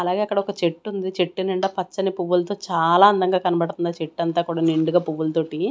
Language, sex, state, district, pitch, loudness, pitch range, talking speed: Telugu, female, Andhra Pradesh, Annamaya, 180 Hz, -21 LUFS, 170-190 Hz, 160 wpm